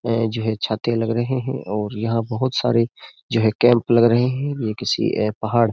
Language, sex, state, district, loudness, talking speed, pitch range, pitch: Hindi, male, Uttar Pradesh, Jyotiba Phule Nagar, -20 LUFS, 230 wpm, 110-120 Hz, 115 Hz